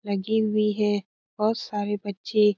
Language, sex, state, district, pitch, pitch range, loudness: Hindi, female, Bihar, Lakhisarai, 210 Hz, 205-215 Hz, -26 LUFS